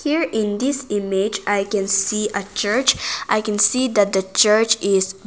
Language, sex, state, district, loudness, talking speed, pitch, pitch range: English, female, Nagaland, Kohima, -19 LUFS, 170 wpm, 210 Hz, 200-220 Hz